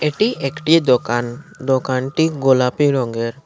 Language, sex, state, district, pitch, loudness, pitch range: Bengali, male, Tripura, Unakoti, 135 Hz, -17 LUFS, 125-150 Hz